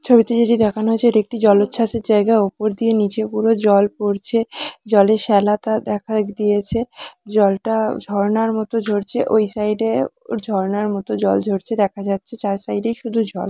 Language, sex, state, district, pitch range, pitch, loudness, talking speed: Bengali, female, West Bengal, Purulia, 205-225 Hz, 215 Hz, -18 LUFS, 165 wpm